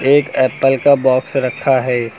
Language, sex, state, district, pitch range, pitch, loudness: Hindi, male, Uttar Pradesh, Lucknow, 130-140 Hz, 135 Hz, -14 LUFS